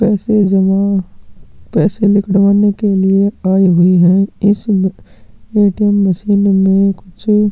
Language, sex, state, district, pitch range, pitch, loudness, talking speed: Hindi, male, Chhattisgarh, Sukma, 190-205 Hz, 195 Hz, -12 LUFS, 110 wpm